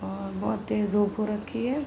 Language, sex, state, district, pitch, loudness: Hindi, female, Uttar Pradesh, Gorakhpur, 205 Hz, -28 LUFS